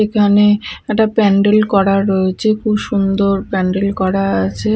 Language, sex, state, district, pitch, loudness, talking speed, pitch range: Bengali, female, Odisha, Malkangiri, 200 Hz, -14 LUFS, 125 wpm, 190-210 Hz